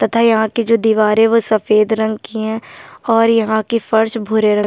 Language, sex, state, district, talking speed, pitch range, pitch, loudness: Hindi, female, Bihar, Kishanganj, 220 wpm, 220-230 Hz, 220 Hz, -15 LUFS